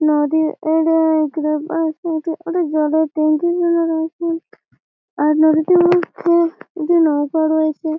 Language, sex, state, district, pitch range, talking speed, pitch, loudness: Bengali, female, West Bengal, Malda, 310-335 Hz, 85 wpm, 320 Hz, -17 LUFS